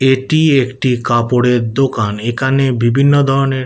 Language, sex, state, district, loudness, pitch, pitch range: Bengali, male, West Bengal, Kolkata, -13 LUFS, 130 Hz, 120-135 Hz